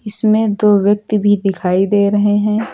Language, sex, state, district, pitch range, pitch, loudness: Hindi, female, Uttar Pradesh, Lucknow, 200-210 Hz, 205 Hz, -13 LUFS